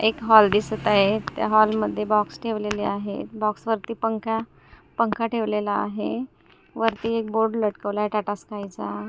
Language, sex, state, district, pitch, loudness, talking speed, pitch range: Marathi, female, Maharashtra, Gondia, 215 Hz, -23 LUFS, 150 wpm, 210-225 Hz